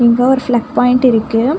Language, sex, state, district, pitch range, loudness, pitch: Tamil, female, Tamil Nadu, Nilgiris, 235-255 Hz, -13 LUFS, 245 Hz